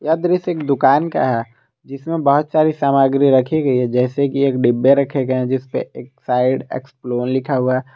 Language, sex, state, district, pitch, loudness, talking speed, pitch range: Hindi, male, Jharkhand, Garhwa, 135 Hz, -17 LUFS, 180 wpm, 130-140 Hz